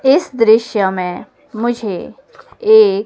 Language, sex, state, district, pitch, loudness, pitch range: Hindi, female, Himachal Pradesh, Shimla, 235 Hz, -14 LUFS, 210-300 Hz